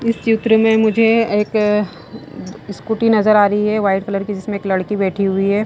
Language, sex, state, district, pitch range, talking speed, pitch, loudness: Hindi, female, Himachal Pradesh, Shimla, 200-220 Hz, 190 wpm, 210 Hz, -16 LUFS